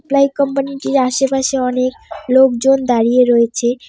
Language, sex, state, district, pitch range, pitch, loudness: Bengali, female, West Bengal, Cooch Behar, 245-270 Hz, 260 Hz, -14 LUFS